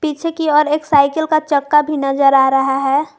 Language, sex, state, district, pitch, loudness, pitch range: Hindi, female, Jharkhand, Garhwa, 295 Hz, -14 LUFS, 275-310 Hz